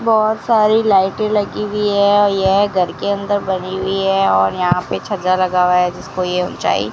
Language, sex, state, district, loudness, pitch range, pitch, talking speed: Hindi, female, Rajasthan, Bikaner, -16 LUFS, 180-205 Hz, 195 Hz, 210 wpm